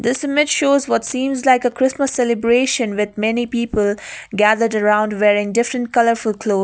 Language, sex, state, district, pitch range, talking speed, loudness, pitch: English, female, Sikkim, Gangtok, 215-260 Hz, 160 wpm, -17 LUFS, 235 Hz